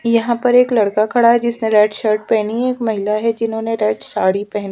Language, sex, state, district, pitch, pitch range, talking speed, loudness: Hindi, female, Chhattisgarh, Raipur, 225 Hz, 210-235 Hz, 230 wpm, -16 LUFS